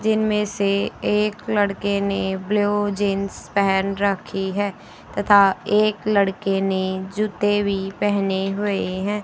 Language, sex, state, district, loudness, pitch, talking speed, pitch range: Hindi, male, Haryana, Charkhi Dadri, -21 LUFS, 200 Hz, 125 wpm, 195-205 Hz